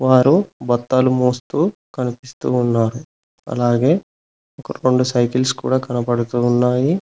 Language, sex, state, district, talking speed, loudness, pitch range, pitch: Telugu, male, Telangana, Mahabubabad, 90 wpm, -18 LUFS, 120-130 Hz, 125 Hz